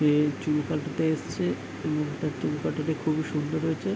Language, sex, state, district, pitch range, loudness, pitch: Bengali, male, West Bengal, Paschim Medinipur, 150-155 Hz, -28 LUFS, 155 Hz